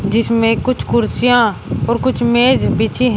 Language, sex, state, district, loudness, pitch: Hindi, male, Uttar Pradesh, Shamli, -14 LUFS, 225 Hz